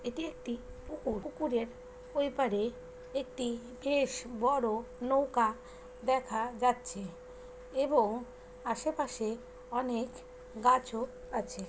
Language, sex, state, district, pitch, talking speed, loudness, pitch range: Bengali, female, West Bengal, Jalpaiguri, 250 Hz, 85 wpm, -34 LUFS, 235-270 Hz